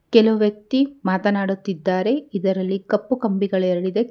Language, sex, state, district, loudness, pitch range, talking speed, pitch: Kannada, female, Karnataka, Bangalore, -21 LUFS, 190-225 Hz, 100 wpm, 200 Hz